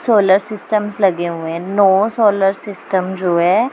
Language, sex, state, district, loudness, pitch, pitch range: Hindi, female, Punjab, Pathankot, -16 LUFS, 195 Hz, 185-210 Hz